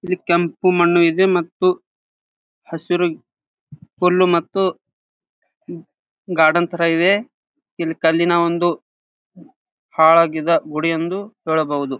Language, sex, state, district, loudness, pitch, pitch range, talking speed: Kannada, male, Karnataka, Gulbarga, -17 LUFS, 170 Hz, 165-185 Hz, 85 wpm